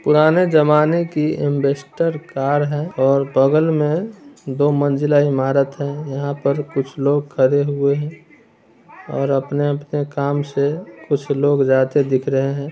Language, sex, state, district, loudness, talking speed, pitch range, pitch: Hindi, male, Bihar, Muzaffarpur, -18 LUFS, 140 wpm, 140-150 Hz, 145 Hz